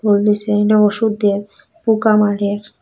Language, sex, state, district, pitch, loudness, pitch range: Bengali, female, Assam, Hailakandi, 210 Hz, -15 LUFS, 205-215 Hz